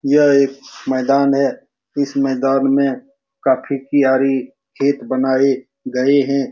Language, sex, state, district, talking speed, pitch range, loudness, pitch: Hindi, male, Bihar, Saran, 120 wpm, 130-140 Hz, -17 LUFS, 135 Hz